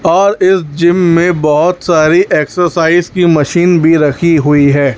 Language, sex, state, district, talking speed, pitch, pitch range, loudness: Hindi, male, Chhattisgarh, Raipur, 155 wpm, 170 Hz, 155-175 Hz, -10 LUFS